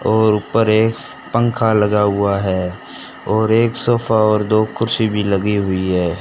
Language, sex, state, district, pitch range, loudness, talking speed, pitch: Hindi, male, Rajasthan, Bikaner, 100-110 Hz, -16 LUFS, 165 wpm, 110 Hz